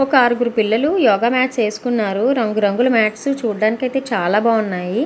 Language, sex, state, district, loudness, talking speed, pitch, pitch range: Telugu, female, Andhra Pradesh, Visakhapatnam, -17 LUFS, 155 wpm, 230 Hz, 215-255 Hz